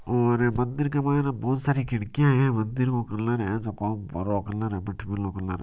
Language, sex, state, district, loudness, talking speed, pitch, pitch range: Marwari, male, Rajasthan, Nagaur, -26 LUFS, 215 wpm, 115 Hz, 105-130 Hz